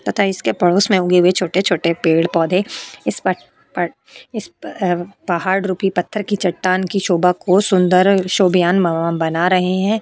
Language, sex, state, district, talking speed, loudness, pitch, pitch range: Hindi, female, Uttar Pradesh, Etah, 175 wpm, -16 LUFS, 185 Hz, 175-195 Hz